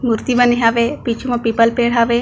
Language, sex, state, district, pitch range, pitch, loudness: Chhattisgarhi, female, Chhattisgarh, Bilaspur, 230-245 Hz, 235 Hz, -15 LUFS